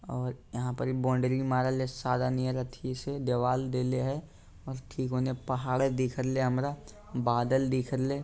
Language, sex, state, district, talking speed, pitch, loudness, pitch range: Maithili, male, Bihar, Lakhisarai, 145 wpm, 130 Hz, -31 LUFS, 125-130 Hz